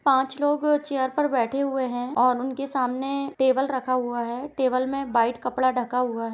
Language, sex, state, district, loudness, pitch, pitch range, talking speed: Hindi, female, Uttar Pradesh, Jalaun, -24 LUFS, 260 Hz, 250-275 Hz, 200 wpm